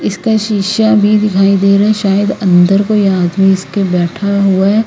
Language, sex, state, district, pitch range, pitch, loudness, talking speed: Hindi, female, Haryana, Rohtak, 195-210 Hz, 200 Hz, -11 LUFS, 170 wpm